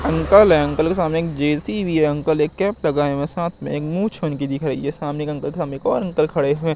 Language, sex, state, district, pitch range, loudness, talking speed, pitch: Hindi, male, Madhya Pradesh, Katni, 145-170 Hz, -19 LUFS, 265 wpm, 155 Hz